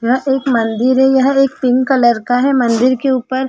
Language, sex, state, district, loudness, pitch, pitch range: Hindi, female, Chhattisgarh, Bastar, -13 LUFS, 260 Hz, 245-265 Hz